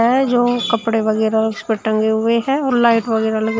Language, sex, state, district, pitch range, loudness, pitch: Hindi, female, Uttar Pradesh, Shamli, 220-245 Hz, -17 LUFS, 225 Hz